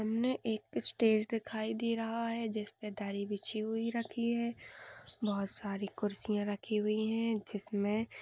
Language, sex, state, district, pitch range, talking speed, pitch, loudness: Hindi, female, Jharkhand, Sahebganj, 205-230 Hz, 140 wpm, 215 Hz, -36 LUFS